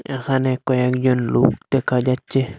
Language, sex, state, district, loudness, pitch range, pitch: Bengali, male, Assam, Hailakandi, -19 LUFS, 125-130 Hz, 130 Hz